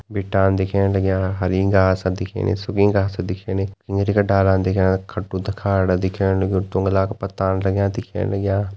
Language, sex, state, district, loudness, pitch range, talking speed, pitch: Garhwali, male, Uttarakhand, Tehri Garhwal, -20 LUFS, 95-100 Hz, 165 wpm, 95 Hz